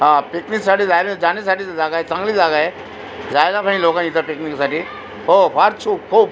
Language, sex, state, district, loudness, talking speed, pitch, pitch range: Marathi, male, Maharashtra, Aurangabad, -17 LUFS, 170 wpm, 170 Hz, 155-200 Hz